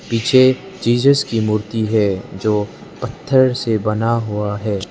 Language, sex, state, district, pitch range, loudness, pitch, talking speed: Hindi, male, Arunachal Pradesh, Lower Dibang Valley, 105-125 Hz, -17 LUFS, 110 Hz, 135 wpm